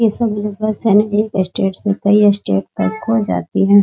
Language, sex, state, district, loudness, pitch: Hindi, female, Bihar, Muzaffarpur, -16 LUFS, 200 Hz